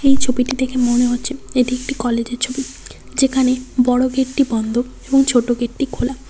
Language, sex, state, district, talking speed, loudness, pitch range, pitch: Bengali, female, West Bengal, Cooch Behar, 160 wpm, -18 LUFS, 245-270 Hz, 255 Hz